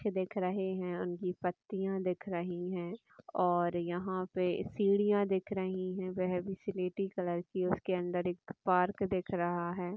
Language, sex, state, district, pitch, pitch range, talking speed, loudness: Hindi, female, Chhattisgarh, Raigarh, 185 Hz, 180-190 Hz, 170 wpm, -35 LUFS